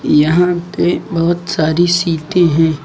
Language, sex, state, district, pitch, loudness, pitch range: Hindi, male, Uttar Pradesh, Lucknow, 170 Hz, -14 LUFS, 160-175 Hz